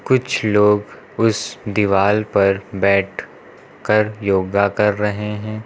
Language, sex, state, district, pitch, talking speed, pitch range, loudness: Hindi, male, Uttar Pradesh, Lucknow, 105 Hz, 115 wpm, 100-105 Hz, -18 LUFS